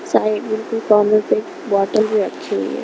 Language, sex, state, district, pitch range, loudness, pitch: Hindi, female, Punjab, Kapurthala, 210-220 Hz, -18 LUFS, 215 Hz